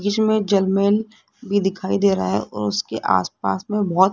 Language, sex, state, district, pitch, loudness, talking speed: Hindi, female, Rajasthan, Jaipur, 190 Hz, -20 LUFS, 175 wpm